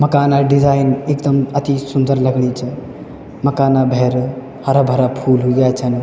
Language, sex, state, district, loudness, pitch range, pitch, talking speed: Garhwali, male, Uttarakhand, Tehri Garhwal, -15 LUFS, 130-140 Hz, 135 Hz, 130 wpm